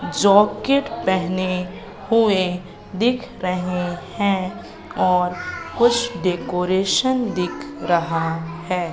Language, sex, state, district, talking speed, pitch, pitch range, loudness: Hindi, female, Madhya Pradesh, Katni, 80 wpm, 185 Hz, 180-210 Hz, -20 LUFS